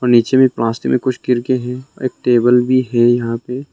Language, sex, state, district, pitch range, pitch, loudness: Hindi, male, Arunachal Pradesh, Longding, 120-130 Hz, 125 Hz, -15 LUFS